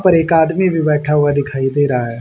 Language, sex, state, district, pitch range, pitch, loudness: Hindi, male, Haryana, Charkhi Dadri, 140-165 Hz, 150 Hz, -15 LUFS